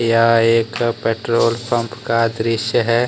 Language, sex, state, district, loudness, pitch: Hindi, male, Jharkhand, Deoghar, -17 LUFS, 115 Hz